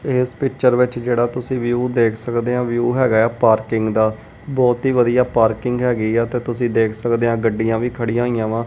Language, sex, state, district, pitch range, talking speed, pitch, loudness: Punjabi, male, Punjab, Kapurthala, 115-125 Hz, 205 wpm, 120 Hz, -18 LUFS